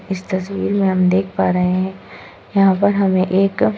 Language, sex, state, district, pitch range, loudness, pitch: Hindi, female, Goa, North and South Goa, 185-195 Hz, -17 LUFS, 190 Hz